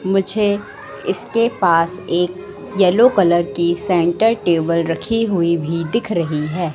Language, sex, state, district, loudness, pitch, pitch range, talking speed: Hindi, female, Madhya Pradesh, Katni, -17 LUFS, 175 Hz, 170-205 Hz, 135 wpm